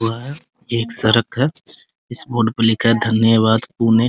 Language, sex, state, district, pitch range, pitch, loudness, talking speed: Hindi, male, Bihar, Muzaffarpur, 115-120 Hz, 115 Hz, -17 LUFS, 220 wpm